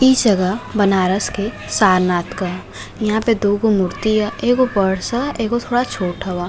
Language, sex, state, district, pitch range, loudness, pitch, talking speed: Bhojpuri, female, Uttar Pradesh, Varanasi, 185-230 Hz, -17 LUFS, 205 Hz, 185 wpm